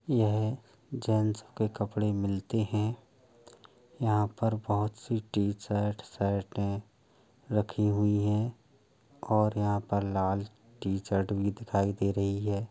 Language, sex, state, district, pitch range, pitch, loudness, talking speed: Hindi, male, Uttar Pradesh, Jalaun, 100-115 Hz, 105 Hz, -31 LUFS, 120 wpm